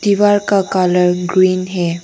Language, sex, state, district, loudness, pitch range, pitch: Hindi, female, Arunachal Pradesh, Longding, -14 LUFS, 180-200 Hz, 185 Hz